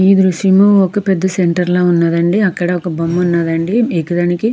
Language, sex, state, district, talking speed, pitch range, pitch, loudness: Telugu, female, Andhra Pradesh, Krishna, 145 wpm, 175-195 Hz, 180 Hz, -13 LUFS